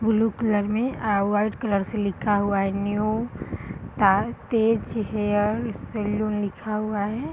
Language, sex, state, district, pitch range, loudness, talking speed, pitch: Hindi, female, Bihar, Purnia, 205-220 Hz, -24 LUFS, 140 wpm, 210 Hz